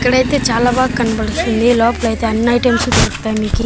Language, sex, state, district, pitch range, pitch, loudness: Telugu, male, Andhra Pradesh, Annamaya, 225-245 Hz, 235 Hz, -14 LUFS